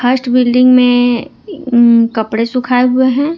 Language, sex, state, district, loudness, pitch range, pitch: Hindi, female, Jharkhand, Ranchi, -11 LUFS, 240-255 Hz, 250 Hz